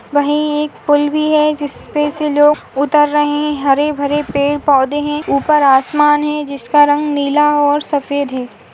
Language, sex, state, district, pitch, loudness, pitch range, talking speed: Hindi, female, Goa, North and South Goa, 295 Hz, -14 LUFS, 285-295 Hz, 165 wpm